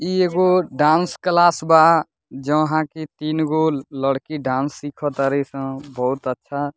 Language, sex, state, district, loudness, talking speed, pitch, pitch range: Bhojpuri, male, Bihar, Muzaffarpur, -19 LUFS, 150 wpm, 150 Hz, 135-160 Hz